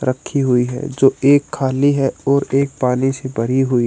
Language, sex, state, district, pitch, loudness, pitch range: Hindi, male, Chhattisgarh, Raipur, 135 Hz, -17 LUFS, 125-140 Hz